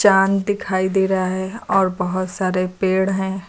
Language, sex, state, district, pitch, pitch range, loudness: Hindi, female, Uttar Pradesh, Lucknow, 190 Hz, 185-195 Hz, -19 LUFS